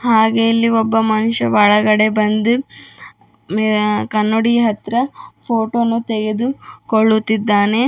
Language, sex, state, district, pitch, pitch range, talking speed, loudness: Kannada, female, Karnataka, Bidar, 220 Hz, 215-230 Hz, 100 wpm, -15 LUFS